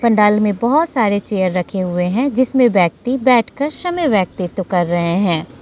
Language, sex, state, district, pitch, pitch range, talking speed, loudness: Hindi, female, Jharkhand, Deoghar, 210 Hz, 180-255 Hz, 170 wpm, -16 LUFS